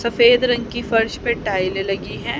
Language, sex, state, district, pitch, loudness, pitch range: Hindi, female, Haryana, Charkhi Dadri, 235 Hz, -19 LUFS, 195-240 Hz